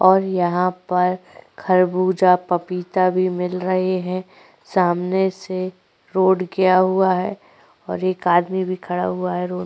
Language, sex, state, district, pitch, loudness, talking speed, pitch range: Hindi, female, Uttar Pradesh, Jyotiba Phule Nagar, 185 Hz, -20 LUFS, 150 wpm, 180-185 Hz